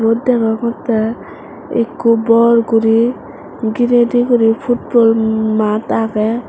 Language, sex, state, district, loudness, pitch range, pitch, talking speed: Chakma, female, Tripura, West Tripura, -14 LUFS, 225-240 Hz, 230 Hz, 100 wpm